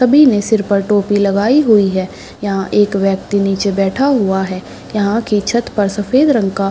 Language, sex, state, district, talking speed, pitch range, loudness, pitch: Hindi, female, Bihar, Madhepura, 195 wpm, 195-225 Hz, -14 LUFS, 205 Hz